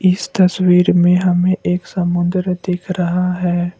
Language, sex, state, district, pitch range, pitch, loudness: Hindi, male, Assam, Kamrup Metropolitan, 175-185 Hz, 180 Hz, -16 LUFS